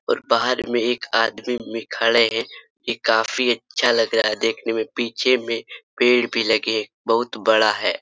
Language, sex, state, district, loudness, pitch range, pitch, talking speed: Hindi, male, Jharkhand, Sahebganj, -20 LUFS, 110-120 Hz, 115 Hz, 180 wpm